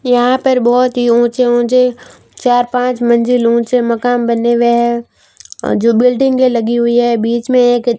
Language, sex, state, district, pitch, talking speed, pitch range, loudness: Hindi, female, Rajasthan, Barmer, 245 Hz, 165 wpm, 235-250 Hz, -12 LUFS